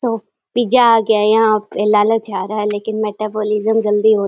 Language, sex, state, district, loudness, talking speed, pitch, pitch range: Hindi, female, Uttar Pradesh, Deoria, -15 LUFS, 195 wpm, 215 Hz, 210-225 Hz